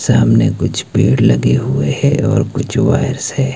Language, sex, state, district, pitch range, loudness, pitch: Hindi, male, Himachal Pradesh, Shimla, 125-140 Hz, -14 LUFS, 135 Hz